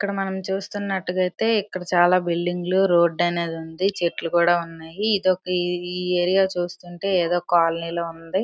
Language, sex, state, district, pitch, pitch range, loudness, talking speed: Telugu, female, Andhra Pradesh, Srikakulam, 180 Hz, 170-190 Hz, -22 LUFS, 165 wpm